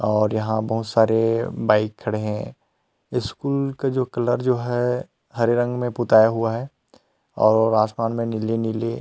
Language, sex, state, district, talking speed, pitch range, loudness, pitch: Hindi, male, Chhattisgarh, Rajnandgaon, 155 wpm, 110-120 Hz, -21 LUFS, 115 Hz